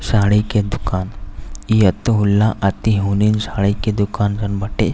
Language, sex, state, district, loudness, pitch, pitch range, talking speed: Bhojpuri, male, Uttar Pradesh, Deoria, -17 LUFS, 105 Hz, 100-110 Hz, 135 wpm